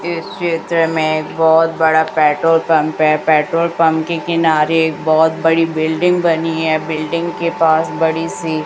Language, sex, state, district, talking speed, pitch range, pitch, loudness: Hindi, female, Chhattisgarh, Raipur, 150 wpm, 155-165 Hz, 160 Hz, -15 LUFS